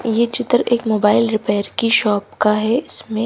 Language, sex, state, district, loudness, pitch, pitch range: Hindi, female, Himachal Pradesh, Shimla, -16 LUFS, 225 Hz, 210-235 Hz